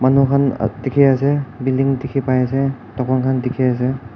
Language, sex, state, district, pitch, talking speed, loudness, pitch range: Nagamese, male, Nagaland, Kohima, 130 Hz, 190 wpm, -18 LUFS, 125-135 Hz